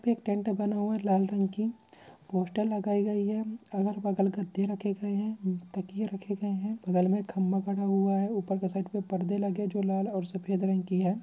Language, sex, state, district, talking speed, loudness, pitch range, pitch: Hindi, male, Chhattisgarh, Bilaspur, 240 wpm, -30 LUFS, 190-205 Hz, 200 Hz